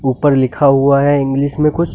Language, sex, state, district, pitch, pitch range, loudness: Hindi, male, Uttar Pradesh, Lucknow, 140 Hz, 135-145 Hz, -13 LUFS